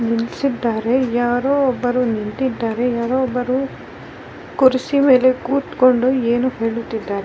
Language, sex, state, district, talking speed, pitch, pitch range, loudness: Kannada, female, Karnataka, Raichur, 60 wpm, 250 Hz, 230-260 Hz, -18 LUFS